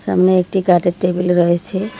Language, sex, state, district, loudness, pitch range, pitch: Bengali, female, West Bengal, Cooch Behar, -15 LUFS, 175-185 Hz, 180 Hz